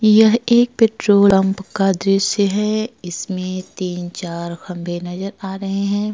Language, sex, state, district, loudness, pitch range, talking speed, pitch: Hindi, male, Uttar Pradesh, Jyotiba Phule Nagar, -18 LUFS, 180-210 Hz, 145 wpm, 195 Hz